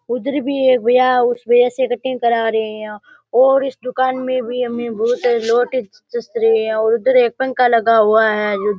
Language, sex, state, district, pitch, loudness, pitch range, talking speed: Rajasthani, male, Rajasthan, Nagaur, 245 Hz, -16 LUFS, 230-255 Hz, 205 wpm